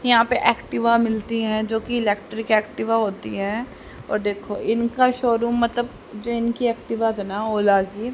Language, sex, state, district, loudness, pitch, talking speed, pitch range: Hindi, male, Haryana, Rohtak, -22 LUFS, 225 Hz, 175 wpm, 215-235 Hz